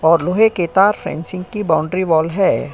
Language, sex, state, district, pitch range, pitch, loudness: Hindi, female, Uttar Pradesh, Jyotiba Phule Nagar, 160-195 Hz, 180 Hz, -16 LUFS